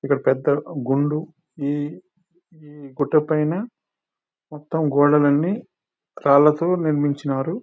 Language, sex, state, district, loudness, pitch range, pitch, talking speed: Telugu, male, Telangana, Nalgonda, -20 LUFS, 145-165 Hz, 150 Hz, 70 wpm